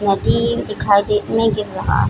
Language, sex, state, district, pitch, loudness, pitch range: Hindi, female, Bihar, Jamui, 205 Hz, -17 LUFS, 200-210 Hz